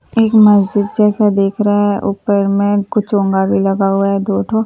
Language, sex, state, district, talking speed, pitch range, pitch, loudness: Hindi, female, Bihar, Katihar, 205 wpm, 195-210 Hz, 205 Hz, -13 LUFS